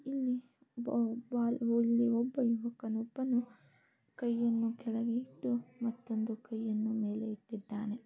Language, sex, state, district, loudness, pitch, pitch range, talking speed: Kannada, female, Karnataka, Dakshina Kannada, -35 LUFS, 235 Hz, 225-240 Hz, 90 wpm